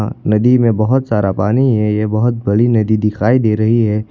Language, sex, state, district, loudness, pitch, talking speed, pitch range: Hindi, male, Uttar Pradesh, Lucknow, -14 LUFS, 110 Hz, 205 wpm, 105-120 Hz